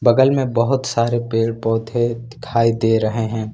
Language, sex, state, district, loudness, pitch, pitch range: Hindi, male, Jharkhand, Ranchi, -18 LUFS, 115 Hz, 115-120 Hz